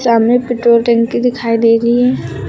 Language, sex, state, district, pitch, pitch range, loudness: Hindi, female, Uttar Pradesh, Lucknow, 235 Hz, 230-240 Hz, -12 LUFS